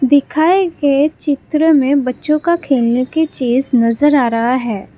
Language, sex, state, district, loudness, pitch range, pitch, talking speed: Hindi, female, Assam, Kamrup Metropolitan, -14 LUFS, 250-310 Hz, 280 Hz, 155 wpm